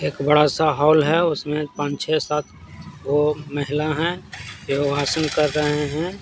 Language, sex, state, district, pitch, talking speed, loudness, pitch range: Hindi, male, Bihar, Patna, 150 Hz, 165 wpm, -21 LUFS, 145-155 Hz